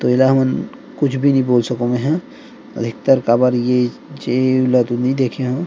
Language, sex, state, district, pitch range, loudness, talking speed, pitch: Chhattisgarhi, male, Chhattisgarh, Rajnandgaon, 125-135 Hz, -17 LUFS, 180 wpm, 130 Hz